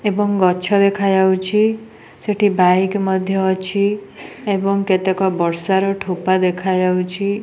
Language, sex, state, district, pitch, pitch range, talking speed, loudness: Odia, female, Odisha, Nuapada, 190 Hz, 185-200 Hz, 95 wpm, -17 LUFS